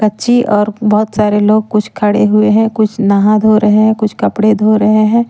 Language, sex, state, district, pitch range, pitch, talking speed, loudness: Hindi, female, Bihar, Katihar, 210-215 Hz, 215 Hz, 215 wpm, -11 LUFS